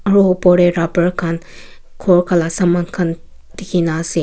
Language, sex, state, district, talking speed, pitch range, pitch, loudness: Nagamese, female, Nagaland, Kohima, 170 wpm, 170-180 Hz, 175 Hz, -15 LUFS